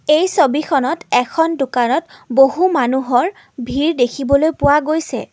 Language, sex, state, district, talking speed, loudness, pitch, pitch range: Assamese, female, Assam, Kamrup Metropolitan, 115 wpm, -16 LUFS, 285 Hz, 260-320 Hz